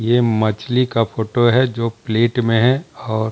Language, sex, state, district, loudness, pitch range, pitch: Hindi, male, Bihar, Jamui, -17 LUFS, 110-125 Hz, 115 Hz